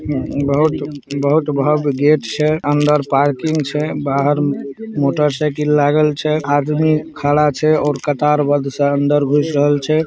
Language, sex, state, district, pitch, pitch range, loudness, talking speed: Hindi, male, Bihar, Saharsa, 145 Hz, 145-150 Hz, -16 LUFS, 130 wpm